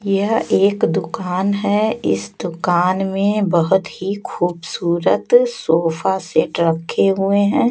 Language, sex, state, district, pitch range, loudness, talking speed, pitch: Hindi, female, Chhattisgarh, Raipur, 170-200 Hz, -18 LUFS, 115 wpm, 190 Hz